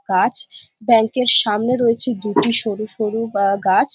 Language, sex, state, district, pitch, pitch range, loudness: Bengali, female, West Bengal, Jhargram, 225 Hz, 210-235 Hz, -17 LUFS